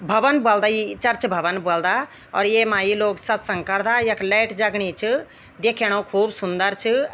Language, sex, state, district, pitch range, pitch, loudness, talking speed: Garhwali, female, Uttarakhand, Tehri Garhwal, 195-225 Hz, 210 Hz, -20 LUFS, 170 wpm